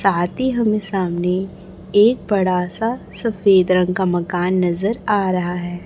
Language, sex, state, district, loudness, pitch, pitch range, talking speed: Hindi, female, Chhattisgarh, Raipur, -18 LUFS, 185 Hz, 180-210 Hz, 155 wpm